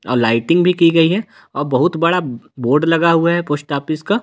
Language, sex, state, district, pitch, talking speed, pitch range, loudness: Hindi, male, Delhi, New Delhi, 165 Hz, 255 wpm, 140-170 Hz, -15 LUFS